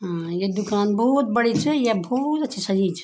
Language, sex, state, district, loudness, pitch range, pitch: Garhwali, female, Uttarakhand, Tehri Garhwal, -22 LUFS, 190-250 Hz, 210 Hz